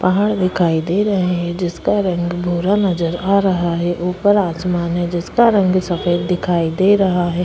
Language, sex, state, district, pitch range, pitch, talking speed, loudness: Hindi, female, Chhattisgarh, Jashpur, 175-195 Hz, 180 Hz, 175 wpm, -17 LUFS